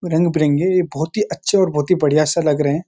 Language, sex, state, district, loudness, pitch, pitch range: Hindi, male, Uttarakhand, Uttarkashi, -17 LUFS, 165 Hz, 150-180 Hz